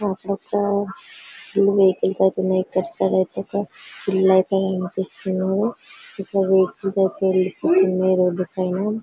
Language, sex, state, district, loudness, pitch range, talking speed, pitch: Telugu, female, Telangana, Karimnagar, -20 LUFS, 185-200 Hz, 115 wpm, 190 Hz